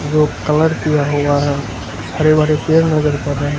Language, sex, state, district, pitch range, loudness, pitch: Hindi, male, Gujarat, Valsad, 145-155 Hz, -15 LUFS, 145 Hz